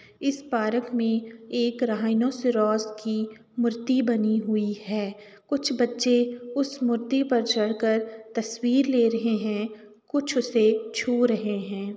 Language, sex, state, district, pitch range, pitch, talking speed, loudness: Hindi, female, Uttar Pradesh, Jalaun, 220-245 Hz, 230 Hz, 125 wpm, -25 LUFS